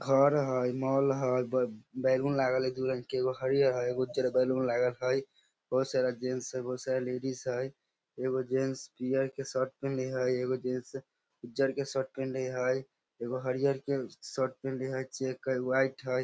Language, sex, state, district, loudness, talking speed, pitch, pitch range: Maithili, male, Bihar, Samastipur, -32 LUFS, 190 wpm, 130 Hz, 125-135 Hz